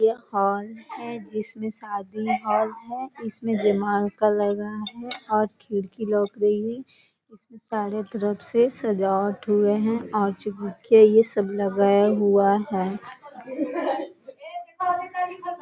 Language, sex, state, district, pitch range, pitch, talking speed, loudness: Hindi, female, Bihar, Jahanabad, 205-240 Hz, 215 Hz, 125 wpm, -24 LUFS